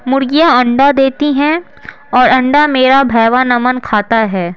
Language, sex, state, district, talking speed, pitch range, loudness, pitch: Hindi, female, Bihar, Patna, 145 wpm, 245-285 Hz, -11 LUFS, 260 Hz